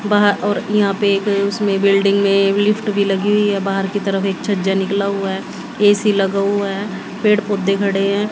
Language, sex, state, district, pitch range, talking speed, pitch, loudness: Hindi, female, Haryana, Jhajjar, 195-205 Hz, 210 wpm, 200 Hz, -17 LUFS